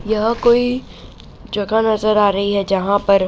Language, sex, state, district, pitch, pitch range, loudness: Hindi, female, Bihar, Araria, 215 Hz, 200-225 Hz, -17 LUFS